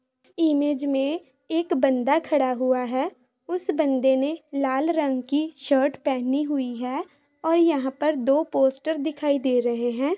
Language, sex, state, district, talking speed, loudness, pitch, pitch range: Hindi, female, Jharkhand, Sahebganj, 155 wpm, -24 LUFS, 285 Hz, 265-310 Hz